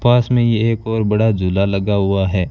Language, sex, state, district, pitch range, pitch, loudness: Hindi, male, Rajasthan, Bikaner, 100-115 Hz, 105 Hz, -16 LUFS